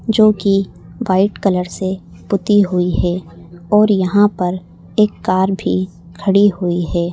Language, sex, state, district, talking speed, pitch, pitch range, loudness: Hindi, female, Madhya Pradesh, Bhopal, 145 wpm, 190 Hz, 180-205 Hz, -16 LUFS